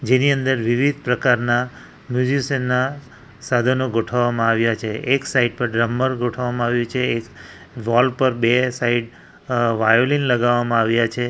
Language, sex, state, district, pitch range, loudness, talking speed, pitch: Gujarati, male, Gujarat, Valsad, 115-130 Hz, -19 LUFS, 145 wpm, 120 Hz